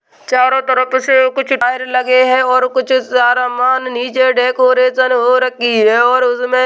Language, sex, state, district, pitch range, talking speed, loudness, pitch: Hindi, male, Bihar, Jamui, 250-255 Hz, 160 wpm, -12 LUFS, 255 Hz